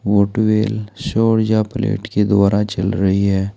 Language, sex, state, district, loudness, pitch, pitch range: Hindi, male, Uttar Pradesh, Saharanpur, -17 LUFS, 105 Hz, 100-110 Hz